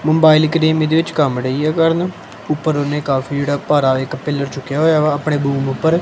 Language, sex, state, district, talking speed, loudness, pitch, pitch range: Punjabi, male, Punjab, Kapurthala, 200 wpm, -16 LUFS, 150 Hz, 140-160 Hz